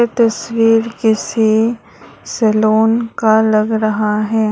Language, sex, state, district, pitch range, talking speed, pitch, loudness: Hindi, female, Arunachal Pradesh, Lower Dibang Valley, 215-230 Hz, 105 wpm, 220 Hz, -14 LUFS